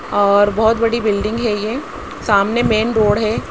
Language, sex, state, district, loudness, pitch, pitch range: Hindi, female, Haryana, Rohtak, -16 LUFS, 220 Hz, 205-230 Hz